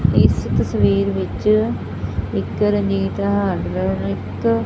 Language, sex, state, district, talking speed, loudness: Punjabi, female, Punjab, Fazilka, 105 wpm, -19 LUFS